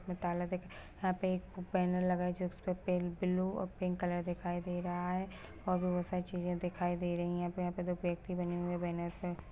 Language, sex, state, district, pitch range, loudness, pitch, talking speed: Hindi, female, Chhattisgarh, Bastar, 175-180 Hz, -37 LUFS, 180 Hz, 250 wpm